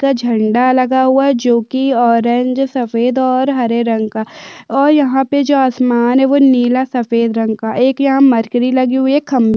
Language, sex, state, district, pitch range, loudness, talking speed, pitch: Hindi, female, Chhattisgarh, Sukma, 235-270 Hz, -13 LUFS, 180 wpm, 255 Hz